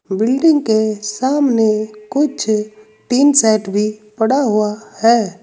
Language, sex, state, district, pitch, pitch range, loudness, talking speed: Hindi, male, Uttar Pradesh, Saharanpur, 220 Hz, 215-255 Hz, -15 LUFS, 110 wpm